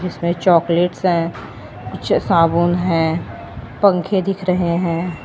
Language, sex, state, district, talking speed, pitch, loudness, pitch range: Hindi, female, Uttar Pradesh, Lalitpur, 115 wpm, 170 Hz, -17 LUFS, 160-180 Hz